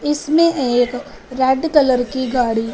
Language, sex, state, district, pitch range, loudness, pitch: Hindi, female, Punjab, Fazilka, 245-295 Hz, -16 LUFS, 260 Hz